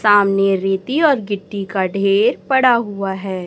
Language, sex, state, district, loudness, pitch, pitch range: Hindi, male, Chhattisgarh, Raipur, -17 LUFS, 200 Hz, 195-225 Hz